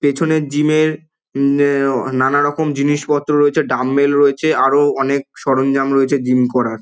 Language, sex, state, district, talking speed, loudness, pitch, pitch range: Bengali, male, West Bengal, Dakshin Dinajpur, 140 wpm, -15 LUFS, 140 Hz, 135-145 Hz